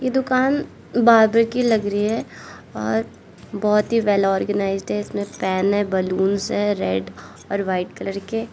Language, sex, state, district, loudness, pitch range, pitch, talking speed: Hindi, female, Arunachal Pradesh, Lower Dibang Valley, -20 LUFS, 185-225 Hz, 200 Hz, 155 wpm